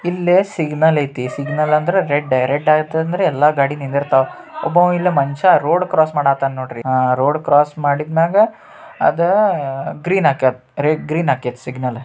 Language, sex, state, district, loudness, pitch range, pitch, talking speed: Kannada, male, Karnataka, Dharwad, -16 LUFS, 135-175 Hz, 150 Hz, 150 wpm